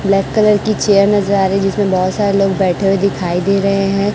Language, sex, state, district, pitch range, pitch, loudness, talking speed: Hindi, female, Chhattisgarh, Raipur, 195-205 Hz, 195 Hz, -14 LUFS, 260 wpm